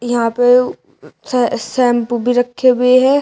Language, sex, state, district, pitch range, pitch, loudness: Hindi, female, Uttar Pradesh, Shamli, 240-255 Hz, 245 Hz, -14 LUFS